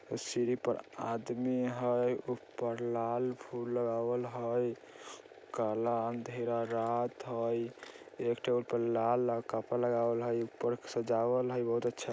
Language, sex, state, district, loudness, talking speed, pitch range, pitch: Bajjika, male, Bihar, Vaishali, -34 LUFS, 125 wpm, 115-120 Hz, 120 Hz